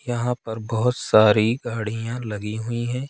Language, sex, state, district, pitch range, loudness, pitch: Hindi, male, Madhya Pradesh, Katni, 110-120 Hz, -22 LUFS, 115 Hz